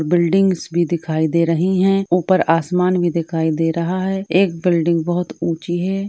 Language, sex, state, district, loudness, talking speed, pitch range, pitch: Hindi, female, Uttar Pradesh, Budaun, -18 LUFS, 175 wpm, 165-185 Hz, 175 Hz